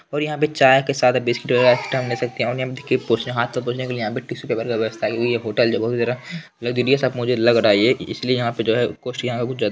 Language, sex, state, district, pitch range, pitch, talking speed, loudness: Hindi, male, Bihar, Lakhisarai, 120-130 Hz, 125 Hz, 290 wpm, -20 LUFS